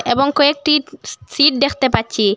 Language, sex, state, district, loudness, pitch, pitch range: Bengali, female, Assam, Hailakandi, -15 LUFS, 280 Hz, 255-295 Hz